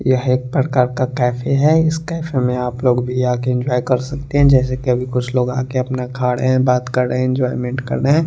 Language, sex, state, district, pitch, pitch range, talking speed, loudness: Hindi, male, Chandigarh, Chandigarh, 125 Hz, 125-130 Hz, 260 wpm, -17 LUFS